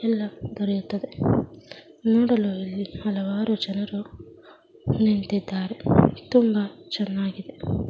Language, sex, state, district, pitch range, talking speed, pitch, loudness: Kannada, female, Karnataka, Mysore, 195-215 Hz, 70 wpm, 205 Hz, -25 LUFS